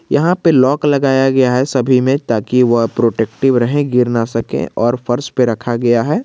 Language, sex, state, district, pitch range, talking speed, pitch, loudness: Hindi, male, Jharkhand, Garhwa, 120-135 Hz, 200 wpm, 125 Hz, -14 LUFS